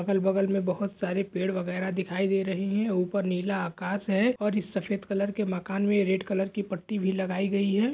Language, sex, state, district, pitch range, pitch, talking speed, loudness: Hindi, male, Maharashtra, Nagpur, 190-200 Hz, 195 Hz, 220 wpm, -28 LUFS